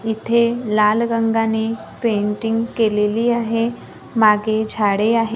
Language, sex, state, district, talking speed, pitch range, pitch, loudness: Marathi, female, Maharashtra, Gondia, 100 wpm, 215-230 Hz, 225 Hz, -18 LUFS